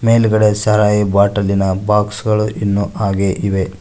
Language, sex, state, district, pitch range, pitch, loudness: Kannada, male, Karnataka, Koppal, 100-105 Hz, 105 Hz, -15 LUFS